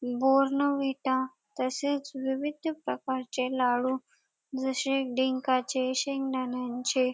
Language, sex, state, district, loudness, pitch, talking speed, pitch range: Marathi, female, Maharashtra, Dhule, -29 LUFS, 260 Hz, 75 wpm, 255-275 Hz